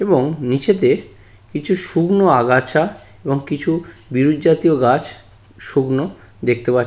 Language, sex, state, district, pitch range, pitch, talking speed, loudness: Bengali, male, West Bengal, Purulia, 125-165 Hz, 140 Hz, 115 wpm, -17 LUFS